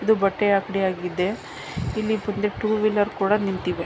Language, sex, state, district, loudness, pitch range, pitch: Kannada, female, Karnataka, Mysore, -23 LUFS, 190-215 Hz, 200 Hz